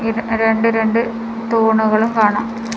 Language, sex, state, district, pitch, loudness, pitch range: Malayalam, female, Kerala, Kasaragod, 225 Hz, -16 LUFS, 220-230 Hz